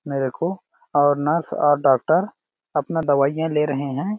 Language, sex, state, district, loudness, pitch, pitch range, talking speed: Hindi, male, Chhattisgarh, Balrampur, -21 LUFS, 145 Hz, 140-160 Hz, 155 wpm